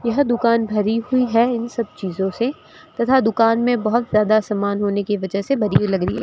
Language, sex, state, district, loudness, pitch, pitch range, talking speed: Hindi, female, Rajasthan, Bikaner, -19 LUFS, 225 Hz, 205-240 Hz, 230 wpm